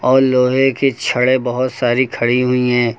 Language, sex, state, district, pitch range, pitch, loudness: Hindi, male, Uttar Pradesh, Lucknow, 120-130 Hz, 125 Hz, -15 LUFS